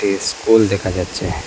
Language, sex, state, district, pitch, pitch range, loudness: Bengali, male, Assam, Hailakandi, 95 Hz, 90-100 Hz, -17 LUFS